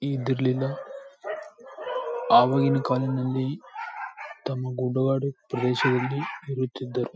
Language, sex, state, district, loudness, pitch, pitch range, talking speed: Kannada, male, Karnataka, Bijapur, -26 LUFS, 135 Hz, 130-180 Hz, 60 wpm